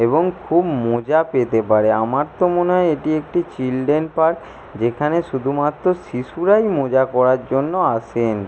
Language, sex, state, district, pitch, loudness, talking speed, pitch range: Bengali, male, West Bengal, Jalpaiguri, 140 Hz, -18 LUFS, 140 wpm, 125-165 Hz